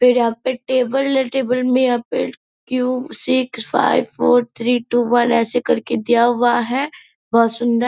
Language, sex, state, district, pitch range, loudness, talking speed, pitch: Hindi, female, Bihar, Purnia, 240-260 Hz, -18 LUFS, 175 wpm, 245 Hz